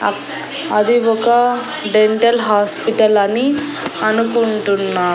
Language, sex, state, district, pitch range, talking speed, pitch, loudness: Telugu, female, Andhra Pradesh, Annamaya, 210-240 Hz, 80 wpm, 225 Hz, -15 LUFS